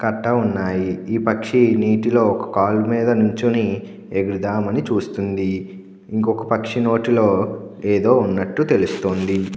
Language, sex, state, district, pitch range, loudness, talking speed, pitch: Telugu, male, Andhra Pradesh, Anantapur, 95-115 Hz, -19 LUFS, 105 wpm, 110 Hz